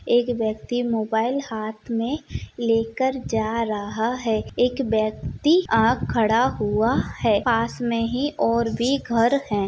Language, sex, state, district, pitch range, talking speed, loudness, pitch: Hindi, female, Chhattisgarh, Sarguja, 220-245 Hz, 135 wpm, -22 LUFS, 230 Hz